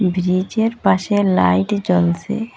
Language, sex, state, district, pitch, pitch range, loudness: Bengali, female, Assam, Hailakandi, 190 Hz, 180-215 Hz, -17 LUFS